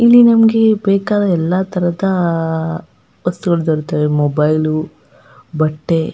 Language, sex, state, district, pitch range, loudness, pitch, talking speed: Kannada, female, Karnataka, Chamarajanagar, 155-195 Hz, -15 LUFS, 170 Hz, 105 wpm